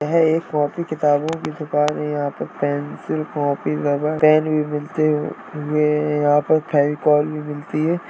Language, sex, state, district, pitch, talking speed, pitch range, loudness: Hindi, male, Uttar Pradesh, Jalaun, 150 Hz, 165 wpm, 150-155 Hz, -20 LUFS